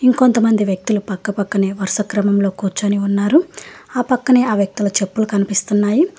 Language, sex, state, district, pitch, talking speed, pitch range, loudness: Telugu, female, Telangana, Hyderabad, 205 Hz, 125 wpm, 200-245 Hz, -17 LUFS